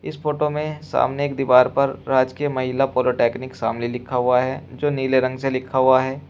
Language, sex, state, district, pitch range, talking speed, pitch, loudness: Hindi, male, Uttar Pradesh, Shamli, 125-140 Hz, 200 wpm, 130 Hz, -20 LUFS